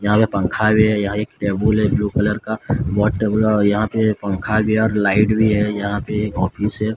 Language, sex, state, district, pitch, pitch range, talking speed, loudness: Hindi, male, Odisha, Sambalpur, 105 Hz, 105-110 Hz, 250 wpm, -18 LUFS